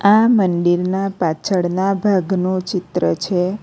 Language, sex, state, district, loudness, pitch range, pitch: Gujarati, female, Gujarat, Navsari, -17 LUFS, 180-195 Hz, 185 Hz